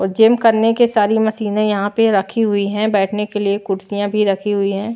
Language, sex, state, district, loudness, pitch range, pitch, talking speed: Hindi, female, Maharashtra, Washim, -16 LUFS, 200-220 Hz, 210 Hz, 230 wpm